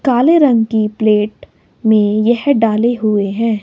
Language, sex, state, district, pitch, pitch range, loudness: Hindi, female, Himachal Pradesh, Shimla, 220 Hz, 215-240 Hz, -13 LUFS